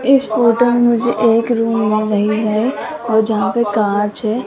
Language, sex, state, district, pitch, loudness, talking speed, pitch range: Hindi, female, Rajasthan, Jaipur, 225 Hz, -15 LUFS, 190 wpm, 215-235 Hz